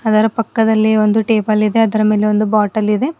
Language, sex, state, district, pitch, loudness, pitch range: Kannada, female, Karnataka, Bidar, 215 Hz, -14 LUFS, 215-220 Hz